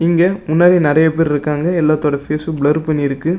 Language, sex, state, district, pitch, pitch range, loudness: Tamil, male, Tamil Nadu, Namakkal, 155 Hz, 150-170 Hz, -15 LUFS